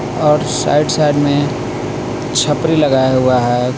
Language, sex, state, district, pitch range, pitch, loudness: Hindi, male, Jharkhand, Garhwa, 125-150 Hz, 130 Hz, -14 LUFS